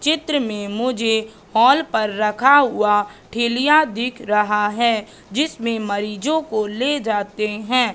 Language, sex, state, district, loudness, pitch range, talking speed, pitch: Hindi, female, Madhya Pradesh, Katni, -19 LUFS, 210-255 Hz, 130 wpm, 225 Hz